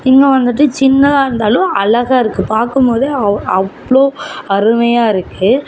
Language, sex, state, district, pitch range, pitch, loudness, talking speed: Tamil, female, Tamil Nadu, Namakkal, 215-270 Hz, 245 Hz, -12 LUFS, 95 wpm